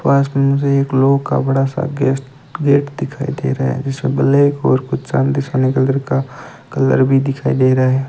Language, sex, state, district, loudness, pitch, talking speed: Hindi, male, Rajasthan, Bikaner, -16 LUFS, 135 Hz, 215 wpm